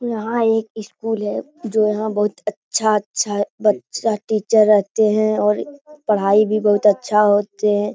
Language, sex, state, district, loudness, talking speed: Hindi, male, Bihar, Supaul, -18 LUFS, 145 wpm